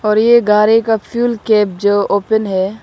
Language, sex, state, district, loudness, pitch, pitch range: Hindi, female, Arunachal Pradesh, Lower Dibang Valley, -13 LUFS, 215 Hz, 205-225 Hz